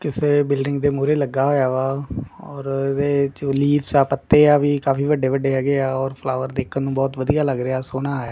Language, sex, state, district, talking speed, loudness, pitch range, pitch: Punjabi, male, Punjab, Kapurthala, 225 wpm, -20 LUFS, 135-145 Hz, 135 Hz